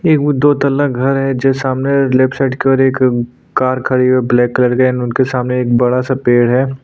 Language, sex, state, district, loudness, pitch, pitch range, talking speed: Hindi, male, Uttarakhand, Tehri Garhwal, -13 LUFS, 130 Hz, 125-135 Hz, 230 wpm